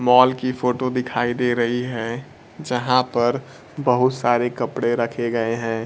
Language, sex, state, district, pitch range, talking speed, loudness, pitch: Hindi, male, Bihar, Kaimur, 120-125 Hz, 155 wpm, -21 LUFS, 120 Hz